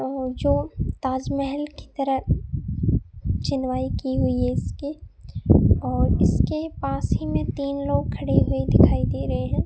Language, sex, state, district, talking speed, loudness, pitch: Hindi, female, Rajasthan, Bikaner, 135 wpm, -23 LUFS, 255 Hz